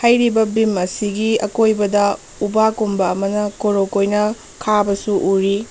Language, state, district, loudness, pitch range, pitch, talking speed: Manipuri, Manipur, Imphal West, -17 LUFS, 200-220 Hz, 210 Hz, 115 wpm